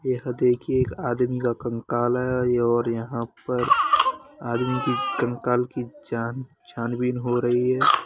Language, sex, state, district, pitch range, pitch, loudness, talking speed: Hindi, male, Uttar Pradesh, Hamirpur, 120-130 Hz, 125 Hz, -24 LUFS, 155 wpm